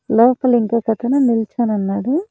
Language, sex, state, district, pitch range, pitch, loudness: Telugu, female, Andhra Pradesh, Annamaya, 225-255 Hz, 235 Hz, -17 LUFS